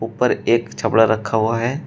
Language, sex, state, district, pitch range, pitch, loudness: Hindi, male, Uttar Pradesh, Shamli, 110-115 Hz, 115 Hz, -18 LUFS